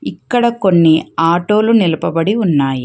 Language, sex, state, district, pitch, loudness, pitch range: Telugu, female, Telangana, Hyderabad, 175 Hz, -13 LUFS, 165-215 Hz